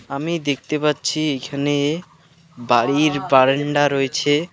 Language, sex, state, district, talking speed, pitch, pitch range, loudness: Bengali, male, West Bengal, Alipurduar, 90 wpm, 145 Hz, 140-155 Hz, -19 LUFS